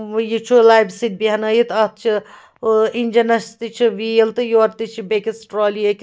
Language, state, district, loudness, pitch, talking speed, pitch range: Kashmiri, Punjab, Kapurthala, -17 LUFS, 225 Hz, 140 wpm, 215-230 Hz